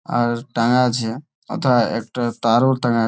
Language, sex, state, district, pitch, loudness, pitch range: Bengali, male, West Bengal, Malda, 120 Hz, -19 LUFS, 115-125 Hz